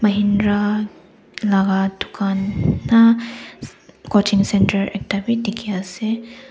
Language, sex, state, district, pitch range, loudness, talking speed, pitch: Nagamese, female, Nagaland, Dimapur, 195-220 Hz, -19 LUFS, 90 wpm, 205 Hz